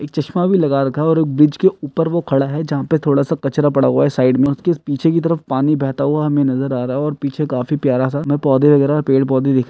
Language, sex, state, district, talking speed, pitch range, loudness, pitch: Hindi, male, Uttarakhand, Uttarkashi, 295 wpm, 135-150 Hz, -16 LUFS, 145 Hz